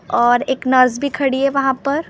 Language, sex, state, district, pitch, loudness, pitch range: Hindi, female, Maharashtra, Gondia, 265 Hz, -16 LUFS, 255-275 Hz